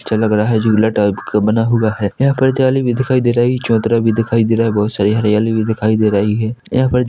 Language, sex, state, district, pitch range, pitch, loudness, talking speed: Hindi, male, Chhattisgarh, Korba, 105-120 Hz, 110 Hz, -14 LUFS, 285 wpm